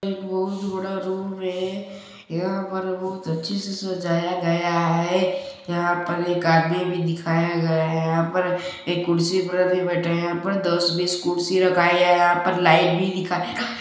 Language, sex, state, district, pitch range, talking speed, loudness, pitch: Hindi, male, Chhattisgarh, Balrampur, 170-190 Hz, 190 wpm, -22 LUFS, 180 Hz